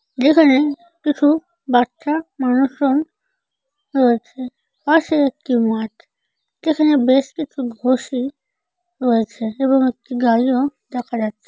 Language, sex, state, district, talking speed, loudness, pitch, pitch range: Bengali, female, West Bengal, Paschim Medinipur, 95 wpm, -18 LUFS, 270 Hz, 250-300 Hz